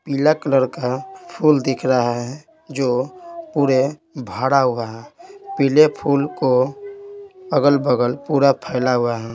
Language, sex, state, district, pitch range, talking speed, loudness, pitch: Hindi, male, Bihar, Patna, 130-160 Hz, 130 wpm, -18 LUFS, 140 Hz